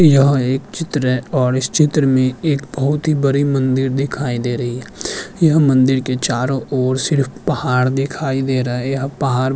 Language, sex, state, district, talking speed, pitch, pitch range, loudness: Hindi, male, Uttarakhand, Tehri Garhwal, 195 wpm, 135 Hz, 130-140 Hz, -17 LUFS